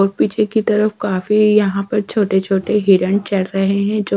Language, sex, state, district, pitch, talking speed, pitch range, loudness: Hindi, female, Odisha, Sambalpur, 200 Hz, 200 wpm, 195-215 Hz, -16 LUFS